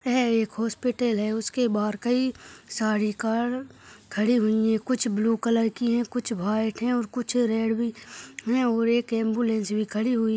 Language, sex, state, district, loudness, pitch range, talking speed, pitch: Hindi, female, Goa, North and South Goa, -25 LUFS, 220-240 Hz, 185 wpm, 230 Hz